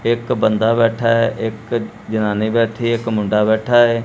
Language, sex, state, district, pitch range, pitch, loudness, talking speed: Punjabi, male, Punjab, Kapurthala, 110-115 Hz, 115 Hz, -17 LUFS, 160 wpm